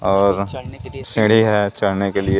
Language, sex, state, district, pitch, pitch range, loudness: Hindi, male, Jharkhand, Garhwa, 100 Hz, 100-110 Hz, -17 LUFS